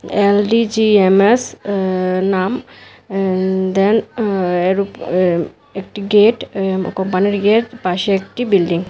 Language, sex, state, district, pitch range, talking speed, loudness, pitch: Bengali, female, Tripura, West Tripura, 185-210 Hz, 80 wpm, -16 LUFS, 195 Hz